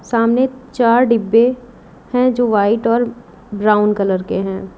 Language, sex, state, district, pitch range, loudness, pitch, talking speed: Hindi, female, Uttar Pradesh, Lucknow, 205-245 Hz, -15 LUFS, 230 Hz, 140 wpm